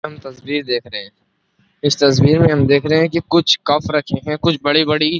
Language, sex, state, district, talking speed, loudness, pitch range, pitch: Hindi, male, Uttar Pradesh, Jyotiba Phule Nagar, 230 wpm, -15 LUFS, 140-155 Hz, 145 Hz